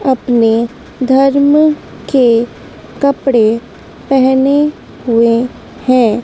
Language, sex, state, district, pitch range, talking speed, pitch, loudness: Hindi, female, Madhya Pradesh, Dhar, 235-275 Hz, 65 wpm, 255 Hz, -12 LUFS